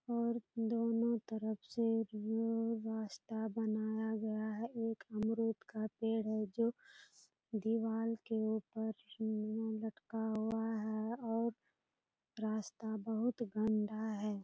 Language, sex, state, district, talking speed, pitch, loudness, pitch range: Hindi, female, Bihar, Purnia, 105 wpm, 220 Hz, -39 LUFS, 215-230 Hz